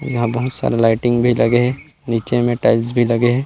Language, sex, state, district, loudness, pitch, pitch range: Chhattisgarhi, male, Chhattisgarh, Rajnandgaon, -17 LUFS, 120 Hz, 115-125 Hz